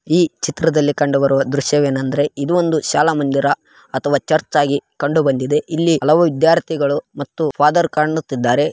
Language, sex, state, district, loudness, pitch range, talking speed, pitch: Kannada, male, Karnataka, Raichur, -17 LUFS, 140-160 Hz, 140 wpm, 145 Hz